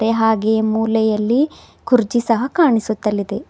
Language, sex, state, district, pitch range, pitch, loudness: Kannada, female, Karnataka, Bidar, 220-235 Hz, 225 Hz, -17 LUFS